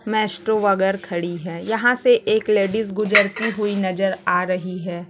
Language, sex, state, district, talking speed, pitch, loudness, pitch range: Hindi, female, Chhattisgarh, Raipur, 165 wpm, 200 Hz, -20 LUFS, 185-215 Hz